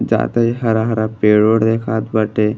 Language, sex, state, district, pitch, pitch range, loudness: Bhojpuri, male, Uttar Pradesh, Gorakhpur, 110 Hz, 110-115 Hz, -16 LUFS